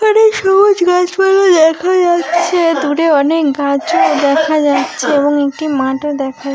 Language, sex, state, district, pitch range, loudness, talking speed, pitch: Bengali, female, West Bengal, Dakshin Dinajpur, 285-360 Hz, -12 LUFS, 130 wpm, 320 Hz